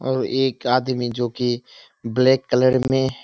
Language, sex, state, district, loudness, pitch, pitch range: Hindi, male, Bihar, Kishanganj, -20 LUFS, 130 Hz, 125-130 Hz